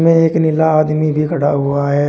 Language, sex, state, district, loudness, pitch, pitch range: Hindi, male, Uttar Pradesh, Shamli, -14 LUFS, 155 Hz, 145-160 Hz